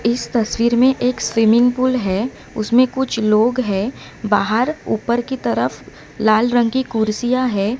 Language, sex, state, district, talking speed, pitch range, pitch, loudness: Hindi, female, Maharashtra, Mumbai Suburban, 155 wpm, 215-250 Hz, 235 Hz, -17 LUFS